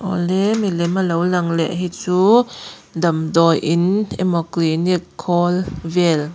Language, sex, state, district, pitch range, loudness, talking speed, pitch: Mizo, female, Mizoram, Aizawl, 165-185 Hz, -18 LUFS, 130 wpm, 175 Hz